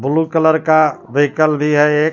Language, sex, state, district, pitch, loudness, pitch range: Hindi, male, Jharkhand, Palamu, 155 Hz, -14 LUFS, 150-160 Hz